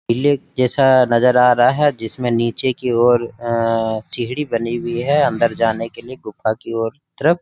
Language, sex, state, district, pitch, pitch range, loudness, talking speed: Hindi, male, Jharkhand, Sahebganj, 120 Hz, 115-130 Hz, -17 LUFS, 185 wpm